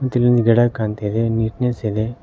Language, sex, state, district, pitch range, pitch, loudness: Kannada, male, Karnataka, Koppal, 110-120 Hz, 115 Hz, -18 LUFS